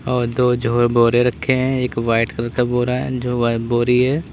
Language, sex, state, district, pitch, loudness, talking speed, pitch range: Hindi, male, Uttar Pradesh, Lalitpur, 120 Hz, -18 LUFS, 220 wpm, 120-125 Hz